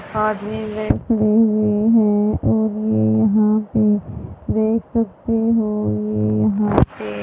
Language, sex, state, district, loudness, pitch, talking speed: Hindi, female, Haryana, Charkhi Dadri, -18 LUFS, 210 Hz, 135 wpm